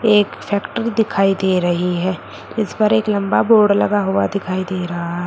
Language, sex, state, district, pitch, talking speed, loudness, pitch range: Hindi, female, Uttar Pradesh, Shamli, 195 Hz, 195 wpm, -17 LUFS, 180-210 Hz